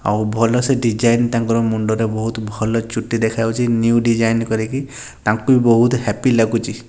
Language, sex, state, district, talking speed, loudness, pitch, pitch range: Odia, male, Odisha, Nuapada, 150 wpm, -17 LUFS, 115 Hz, 110-120 Hz